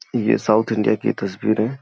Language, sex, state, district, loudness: Hindi, male, Uttar Pradesh, Gorakhpur, -20 LUFS